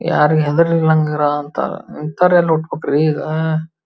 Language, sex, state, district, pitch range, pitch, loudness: Kannada, female, Karnataka, Belgaum, 150-160 Hz, 155 Hz, -16 LUFS